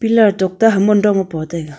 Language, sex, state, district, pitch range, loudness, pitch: Wancho, female, Arunachal Pradesh, Longding, 170-215 Hz, -14 LUFS, 200 Hz